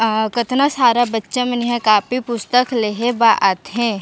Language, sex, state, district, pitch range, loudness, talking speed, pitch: Chhattisgarhi, female, Chhattisgarh, Raigarh, 220-245 Hz, -17 LUFS, 180 wpm, 235 Hz